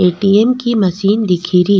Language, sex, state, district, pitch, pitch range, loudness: Rajasthani, female, Rajasthan, Nagaur, 195 Hz, 180-210 Hz, -13 LUFS